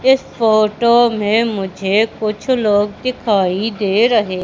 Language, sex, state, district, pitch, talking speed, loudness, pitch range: Hindi, female, Madhya Pradesh, Umaria, 215 Hz, 120 wpm, -15 LUFS, 205-235 Hz